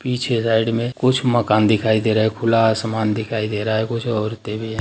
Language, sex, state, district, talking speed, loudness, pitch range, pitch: Hindi, male, Bihar, Darbhanga, 235 wpm, -19 LUFS, 110-115 Hz, 110 Hz